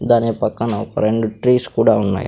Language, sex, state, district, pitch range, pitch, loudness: Telugu, female, Andhra Pradesh, Sri Satya Sai, 105-120 Hz, 115 Hz, -17 LUFS